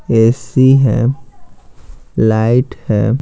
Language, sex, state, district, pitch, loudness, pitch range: Hindi, male, Bihar, Patna, 120 Hz, -13 LUFS, 110-130 Hz